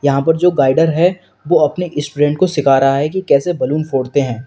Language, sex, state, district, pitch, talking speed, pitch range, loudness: Hindi, male, Uttar Pradesh, Lalitpur, 150 Hz, 230 wpm, 140-175 Hz, -14 LUFS